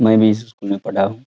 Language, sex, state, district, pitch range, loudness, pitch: Hindi, male, Bihar, Araria, 100-110 Hz, -18 LUFS, 110 Hz